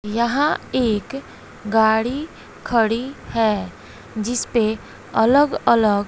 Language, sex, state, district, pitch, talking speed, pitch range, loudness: Hindi, female, Bihar, West Champaran, 225 Hz, 80 wpm, 215-245 Hz, -20 LUFS